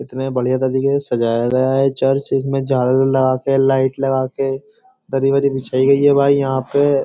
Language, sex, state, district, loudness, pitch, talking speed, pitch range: Hindi, male, Uttar Pradesh, Jyotiba Phule Nagar, -16 LUFS, 135 Hz, 205 wpm, 130-140 Hz